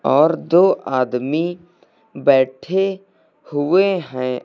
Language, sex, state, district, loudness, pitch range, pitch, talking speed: Hindi, male, Uttar Pradesh, Lucknow, -18 LUFS, 130-185 Hz, 160 Hz, 80 wpm